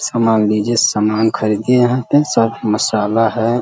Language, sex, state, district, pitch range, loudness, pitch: Hindi, male, Uttar Pradesh, Deoria, 105-120 Hz, -15 LUFS, 115 Hz